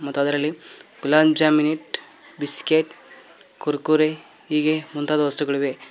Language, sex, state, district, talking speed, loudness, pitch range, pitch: Kannada, male, Karnataka, Koppal, 80 wpm, -20 LUFS, 145-155 Hz, 150 Hz